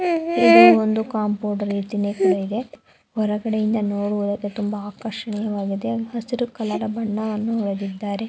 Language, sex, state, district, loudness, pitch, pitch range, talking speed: Kannada, female, Karnataka, Mysore, -21 LUFS, 210 Hz, 205-225 Hz, 85 wpm